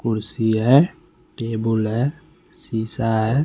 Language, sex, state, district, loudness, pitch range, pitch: Hindi, male, Bihar, West Champaran, -21 LUFS, 110-145 Hz, 115 Hz